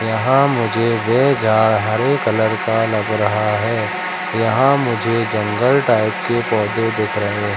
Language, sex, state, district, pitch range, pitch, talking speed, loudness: Hindi, male, Madhya Pradesh, Katni, 110-120 Hz, 115 Hz, 140 wpm, -17 LUFS